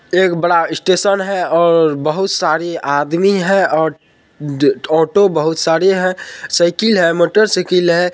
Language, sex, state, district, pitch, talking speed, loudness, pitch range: Hindi, male, Bihar, Purnia, 170 Hz, 140 wpm, -14 LUFS, 160-190 Hz